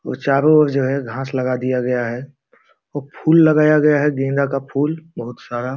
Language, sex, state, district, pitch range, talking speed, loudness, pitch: Hindi, male, Bihar, Jamui, 130-150 Hz, 220 wpm, -17 LUFS, 135 Hz